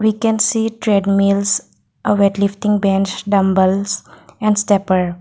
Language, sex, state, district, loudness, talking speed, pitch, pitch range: English, female, Assam, Kamrup Metropolitan, -16 LUFS, 115 wpm, 200 Hz, 195-210 Hz